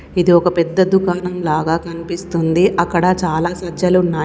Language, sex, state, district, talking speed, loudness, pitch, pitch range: Telugu, female, Telangana, Komaram Bheem, 125 wpm, -16 LUFS, 175 Hz, 165-180 Hz